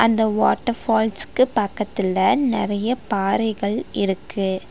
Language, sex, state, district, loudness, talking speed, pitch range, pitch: Tamil, female, Tamil Nadu, Nilgiris, -21 LUFS, 90 wpm, 195-225 Hz, 215 Hz